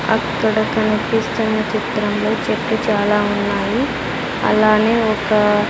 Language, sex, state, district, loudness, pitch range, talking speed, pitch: Telugu, female, Andhra Pradesh, Sri Satya Sai, -17 LUFS, 210-220 Hz, 85 wpm, 215 Hz